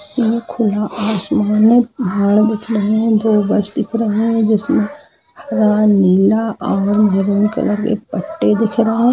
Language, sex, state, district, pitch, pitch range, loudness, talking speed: Hindi, female, Jharkhand, Jamtara, 215 Hz, 210-225 Hz, -15 LUFS, 155 wpm